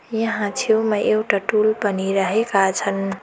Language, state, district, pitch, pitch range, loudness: Nepali, West Bengal, Darjeeling, 205 Hz, 195-220 Hz, -20 LUFS